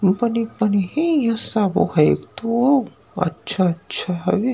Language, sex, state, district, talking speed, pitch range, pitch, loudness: Chhattisgarhi, male, Chhattisgarh, Rajnandgaon, 105 wpm, 185-235 Hz, 210 Hz, -19 LUFS